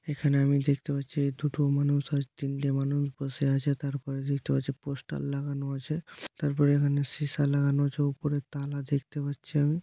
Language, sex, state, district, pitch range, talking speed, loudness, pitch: Bengali, male, West Bengal, Malda, 140-145 Hz, 165 wpm, -29 LUFS, 140 Hz